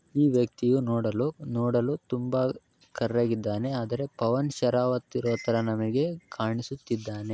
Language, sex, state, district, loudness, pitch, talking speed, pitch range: Kannada, male, Karnataka, Belgaum, -28 LUFS, 120 Hz, 100 wpm, 115-130 Hz